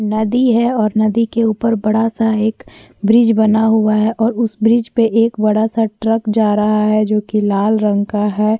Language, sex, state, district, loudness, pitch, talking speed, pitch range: Hindi, female, Chhattisgarh, Korba, -15 LUFS, 220 Hz, 195 wpm, 215-225 Hz